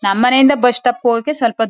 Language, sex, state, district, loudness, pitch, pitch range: Kannada, female, Karnataka, Mysore, -13 LUFS, 245 Hz, 230-260 Hz